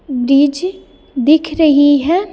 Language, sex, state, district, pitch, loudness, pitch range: Hindi, female, Bihar, Patna, 305 Hz, -12 LUFS, 285-345 Hz